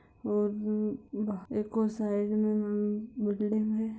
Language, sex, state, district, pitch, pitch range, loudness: Hindi, female, Bihar, Lakhisarai, 215 Hz, 210-215 Hz, -31 LUFS